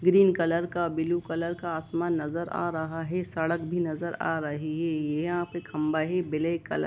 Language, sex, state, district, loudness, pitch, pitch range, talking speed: Hindi, male, Jharkhand, Sahebganj, -29 LUFS, 165 Hz, 160-175 Hz, 200 wpm